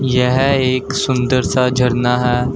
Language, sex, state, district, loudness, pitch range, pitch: Hindi, male, Uttar Pradesh, Shamli, -15 LUFS, 125-130 Hz, 125 Hz